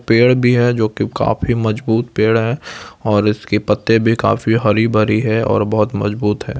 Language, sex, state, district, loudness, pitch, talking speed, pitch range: Hindi, male, Bihar, Supaul, -15 LUFS, 110 Hz, 190 wpm, 105-115 Hz